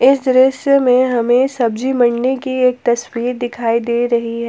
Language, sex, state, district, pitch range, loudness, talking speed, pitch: Hindi, female, Jharkhand, Palamu, 235-260 Hz, -15 LUFS, 175 wpm, 245 Hz